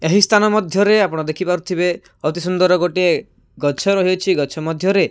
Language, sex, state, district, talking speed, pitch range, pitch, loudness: Odia, male, Odisha, Khordha, 190 wpm, 165-195 Hz, 180 Hz, -17 LUFS